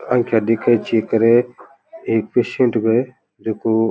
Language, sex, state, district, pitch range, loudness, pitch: Rajasthani, male, Rajasthan, Churu, 110-125 Hz, -17 LUFS, 115 Hz